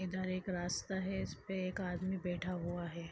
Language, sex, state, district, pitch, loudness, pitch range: Hindi, female, Chhattisgarh, Sarguja, 185 Hz, -40 LUFS, 175-190 Hz